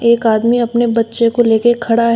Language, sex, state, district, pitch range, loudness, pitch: Hindi, female, Uttar Pradesh, Shamli, 230-240 Hz, -13 LUFS, 235 Hz